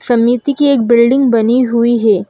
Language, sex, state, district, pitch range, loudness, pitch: Hindi, female, Madhya Pradesh, Bhopal, 230-255 Hz, -11 LUFS, 240 Hz